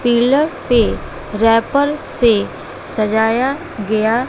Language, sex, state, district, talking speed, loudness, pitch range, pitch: Hindi, female, Bihar, West Champaran, 85 wpm, -16 LUFS, 220-270 Hz, 235 Hz